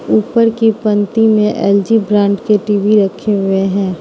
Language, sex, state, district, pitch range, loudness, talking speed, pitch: Hindi, female, Manipur, Imphal West, 195-215 Hz, -13 LUFS, 165 wpm, 205 Hz